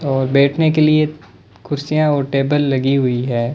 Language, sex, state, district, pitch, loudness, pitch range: Hindi, male, Rajasthan, Bikaner, 140 Hz, -16 LUFS, 130-155 Hz